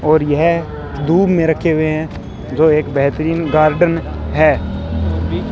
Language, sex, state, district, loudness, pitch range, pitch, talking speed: Hindi, male, Rajasthan, Bikaner, -15 LUFS, 125-165 Hz, 155 Hz, 130 wpm